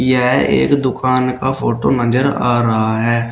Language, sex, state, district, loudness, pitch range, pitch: Hindi, male, Uttar Pradesh, Shamli, -15 LUFS, 115-130 Hz, 125 Hz